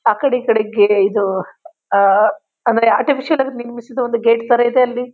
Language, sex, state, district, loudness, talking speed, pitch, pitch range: Kannada, female, Karnataka, Chamarajanagar, -15 LUFS, 165 wpm, 240 Hz, 215-255 Hz